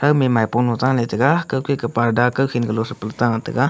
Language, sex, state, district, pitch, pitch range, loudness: Wancho, male, Arunachal Pradesh, Longding, 120 Hz, 115-135 Hz, -19 LUFS